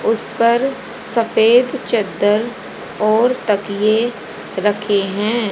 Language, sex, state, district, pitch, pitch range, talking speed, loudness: Hindi, female, Haryana, Jhajjar, 220 Hz, 210-235 Hz, 75 wpm, -16 LUFS